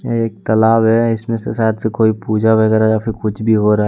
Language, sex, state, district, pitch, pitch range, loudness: Hindi, male, Jharkhand, Deoghar, 110 Hz, 110-115 Hz, -15 LUFS